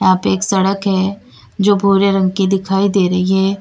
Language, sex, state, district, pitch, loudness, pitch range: Hindi, female, Uttar Pradesh, Lalitpur, 195 Hz, -15 LUFS, 190-195 Hz